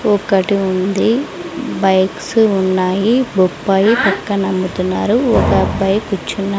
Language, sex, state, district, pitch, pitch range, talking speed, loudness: Telugu, female, Andhra Pradesh, Sri Satya Sai, 195 Hz, 190-205 Hz, 90 wpm, -15 LUFS